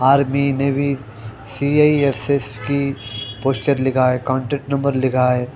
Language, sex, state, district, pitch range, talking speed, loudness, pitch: Hindi, male, Haryana, Jhajjar, 125-140 Hz, 120 wpm, -18 LUFS, 135 Hz